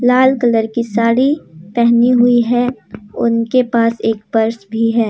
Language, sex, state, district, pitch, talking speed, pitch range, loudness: Hindi, female, Jharkhand, Deoghar, 235 Hz, 155 wpm, 225-245 Hz, -14 LUFS